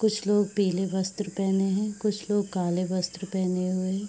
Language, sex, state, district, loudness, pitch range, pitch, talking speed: Hindi, female, Bihar, Araria, -27 LUFS, 185-205 Hz, 195 Hz, 190 wpm